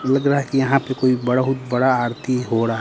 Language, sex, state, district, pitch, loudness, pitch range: Hindi, male, Bihar, Patna, 130 Hz, -19 LUFS, 125-135 Hz